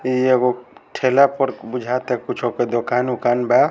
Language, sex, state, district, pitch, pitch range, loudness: Bhojpuri, male, Bihar, Saran, 125 Hz, 120-130 Hz, -19 LUFS